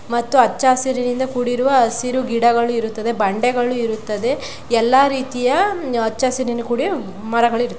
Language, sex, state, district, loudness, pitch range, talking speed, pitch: Kannada, female, Karnataka, Bellary, -18 LUFS, 235-255 Hz, 110 wpm, 245 Hz